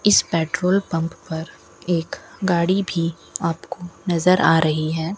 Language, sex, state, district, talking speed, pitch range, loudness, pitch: Hindi, female, Rajasthan, Bikaner, 140 wpm, 165-185 Hz, -21 LUFS, 170 Hz